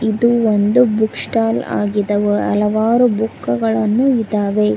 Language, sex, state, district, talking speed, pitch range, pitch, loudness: Kannada, female, Karnataka, Koppal, 100 wpm, 205-225 Hz, 220 Hz, -16 LUFS